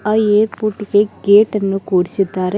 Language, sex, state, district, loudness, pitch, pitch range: Kannada, female, Karnataka, Bidar, -15 LUFS, 205 Hz, 195-215 Hz